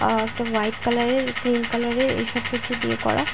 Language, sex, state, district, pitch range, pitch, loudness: Bengali, female, West Bengal, Paschim Medinipur, 225-245 Hz, 240 Hz, -23 LUFS